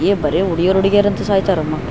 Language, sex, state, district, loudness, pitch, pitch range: Kannada, male, Karnataka, Raichur, -16 LUFS, 195 Hz, 175-200 Hz